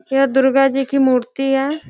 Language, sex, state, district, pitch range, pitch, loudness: Hindi, female, Bihar, Gopalganj, 270-275 Hz, 270 Hz, -16 LUFS